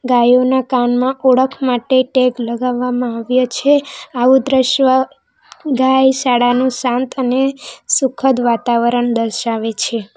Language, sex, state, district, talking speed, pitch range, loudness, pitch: Gujarati, female, Gujarat, Valsad, 105 wpm, 245-265 Hz, -15 LUFS, 255 Hz